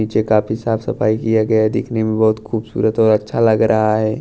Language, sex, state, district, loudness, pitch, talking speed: Hindi, male, Chhattisgarh, Raipur, -16 LUFS, 110 Hz, 225 wpm